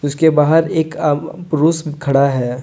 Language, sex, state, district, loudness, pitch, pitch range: Hindi, male, Jharkhand, Deoghar, -15 LUFS, 150 Hz, 145-160 Hz